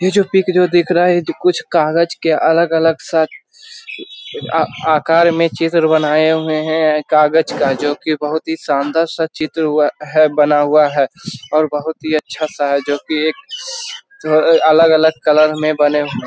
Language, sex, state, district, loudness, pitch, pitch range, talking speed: Hindi, male, Bihar, Jamui, -14 LUFS, 160 Hz, 150-165 Hz, 190 wpm